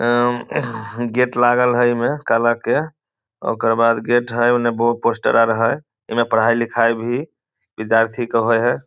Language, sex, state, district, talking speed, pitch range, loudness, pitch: Maithili, male, Bihar, Samastipur, 170 wpm, 115-120 Hz, -18 LUFS, 120 Hz